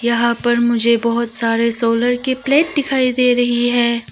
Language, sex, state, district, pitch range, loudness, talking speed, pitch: Hindi, female, Arunachal Pradesh, Lower Dibang Valley, 235-250 Hz, -15 LUFS, 175 wpm, 240 Hz